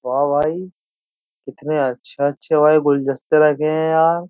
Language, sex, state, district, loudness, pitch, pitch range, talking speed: Hindi, male, Uttar Pradesh, Jyotiba Phule Nagar, -17 LUFS, 150 Hz, 140-155 Hz, 125 wpm